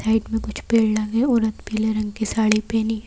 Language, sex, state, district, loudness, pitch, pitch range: Hindi, female, Madhya Pradesh, Bhopal, -21 LUFS, 220 Hz, 215-225 Hz